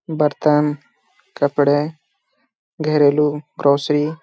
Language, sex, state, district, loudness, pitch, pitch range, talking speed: Hindi, male, Bihar, Gaya, -18 LUFS, 150 Hz, 145-155 Hz, 70 wpm